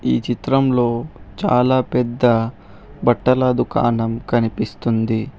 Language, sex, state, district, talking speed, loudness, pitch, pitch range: Telugu, male, Telangana, Hyderabad, 80 wpm, -18 LUFS, 120 Hz, 110-125 Hz